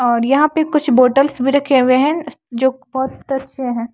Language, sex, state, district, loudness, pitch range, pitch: Hindi, female, Maharashtra, Washim, -16 LUFS, 255-285 Hz, 265 Hz